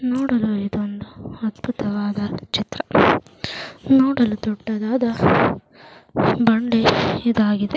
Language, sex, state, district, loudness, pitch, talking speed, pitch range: Kannada, female, Karnataka, Mysore, -20 LUFS, 220 Hz, 60 wpm, 205-240 Hz